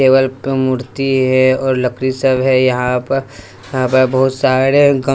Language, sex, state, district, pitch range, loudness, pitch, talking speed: Hindi, male, Bihar, West Champaran, 130-135 Hz, -14 LUFS, 130 Hz, 165 wpm